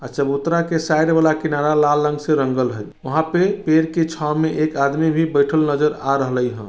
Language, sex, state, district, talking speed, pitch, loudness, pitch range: Bajjika, male, Bihar, Vaishali, 225 wpm, 150 Hz, -18 LUFS, 140-160 Hz